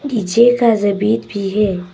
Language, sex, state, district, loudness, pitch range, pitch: Hindi, female, Arunachal Pradesh, Papum Pare, -15 LUFS, 200-230 Hz, 210 Hz